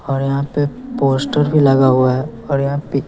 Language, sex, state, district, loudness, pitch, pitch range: Hindi, male, Bihar, West Champaran, -16 LUFS, 140 Hz, 135-145 Hz